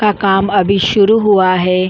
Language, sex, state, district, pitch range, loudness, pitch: Hindi, female, Goa, North and South Goa, 185-205 Hz, -12 LUFS, 195 Hz